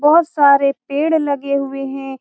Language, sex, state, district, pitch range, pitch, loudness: Hindi, female, Bihar, Saran, 275-295 Hz, 280 Hz, -16 LUFS